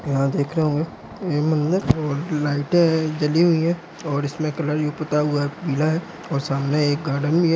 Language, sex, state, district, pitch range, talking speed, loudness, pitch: Hindi, male, Bihar, Jamui, 145-165 Hz, 220 wpm, -22 LUFS, 150 Hz